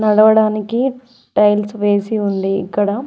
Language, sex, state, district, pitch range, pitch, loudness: Telugu, female, Telangana, Mahabubabad, 205-220 Hz, 210 Hz, -16 LUFS